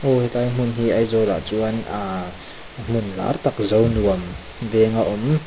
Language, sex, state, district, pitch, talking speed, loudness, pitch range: Mizo, male, Mizoram, Aizawl, 110 Hz, 165 wpm, -20 LUFS, 100-120 Hz